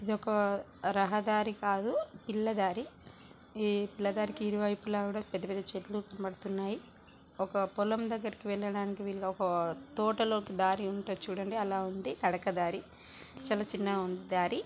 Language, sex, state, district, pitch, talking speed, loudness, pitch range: Telugu, female, Telangana, Nalgonda, 200 Hz, 125 wpm, -34 LUFS, 195-215 Hz